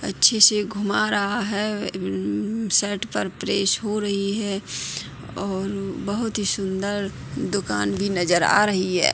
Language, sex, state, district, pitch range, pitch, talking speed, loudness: Hindi, female, Uttarakhand, Tehri Garhwal, 190-210 Hz, 200 Hz, 150 wpm, -22 LUFS